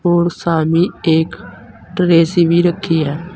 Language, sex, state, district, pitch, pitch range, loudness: Hindi, male, Uttar Pradesh, Saharanpur, 170 Hz, 160-175 Hz, -14 LUFS